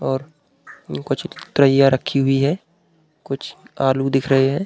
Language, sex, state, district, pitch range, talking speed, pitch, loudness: Hindi, male, Uttar Pradesh, Budaun, 135-150 Hz, 155 wpm, 135 Hz, -19 LUFS